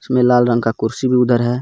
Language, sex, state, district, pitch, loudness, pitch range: Hindi, male, Jharkhand, Garhwa, 120 Hz, -15 LUFS, 120-125 Hz